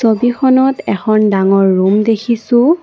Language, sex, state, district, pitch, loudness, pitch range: Assamese, female, Assam, Kamrup Metropolitan, 225 Hz, -12 LUFS, 200-245 Hz